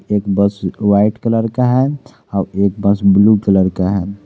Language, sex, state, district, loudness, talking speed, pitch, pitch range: Hindi, male, Jharkhand, Garhwa, -14 LUFS, 185 wpm, 100 Hz, 95-110 Hz